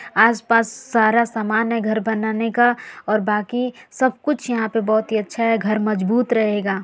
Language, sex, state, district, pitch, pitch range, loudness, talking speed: Hindi, female, Uttar Pradesh, Varanasi, 225 Hz, 215-235 Hz, -19 LUFS, 185 wpm